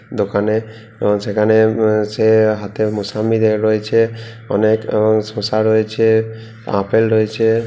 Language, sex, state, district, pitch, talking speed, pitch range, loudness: Bengali, male, West Bengal, Purulia, 110 Hz, 110 wpm, 105-110 Hz, -16 LUFS